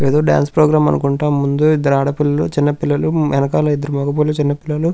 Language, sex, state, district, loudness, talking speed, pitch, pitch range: Telugu, male, Andhra Pradesh, Krishna, -15 LUFS, 180 wpm, 145 Hz, 140-150 Hz